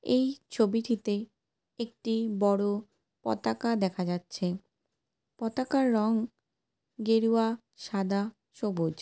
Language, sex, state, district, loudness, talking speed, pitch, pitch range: Bengali, female, West Bengal, Paschim Medinipur, -30 LUFS, 80 wpm, 220 Hz, 200-230 Hz